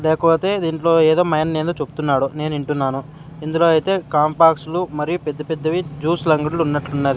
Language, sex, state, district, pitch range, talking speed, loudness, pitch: Telugu, male, Andhra Pradesh, Sri Satya Sai, 150-165 Hz, 125 wpm, -18 LUFS, 155 Hz